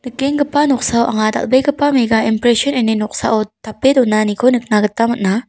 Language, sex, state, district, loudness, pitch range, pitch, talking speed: Garo, female, Meghalaya, South Garo Hills, -15 LUFS, 215-265 Hz, 235 Hz, 140 wpm